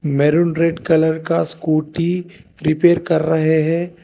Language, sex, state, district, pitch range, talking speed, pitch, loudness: Hindi, male, Telangana, Hyderabad, 155-170 Hz, 135 wpm, 165 Hz, -17 LUFS